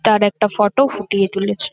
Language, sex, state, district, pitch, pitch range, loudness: Bengali, female, West Bengal, North 24 Parganas, 205 Hz, 200-215 Hz, -16 LUFS